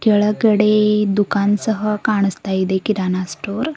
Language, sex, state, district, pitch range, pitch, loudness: Kannada, female, Karnataka, Bidar, 195-215 Hz, 205 Hz, -17 LUFS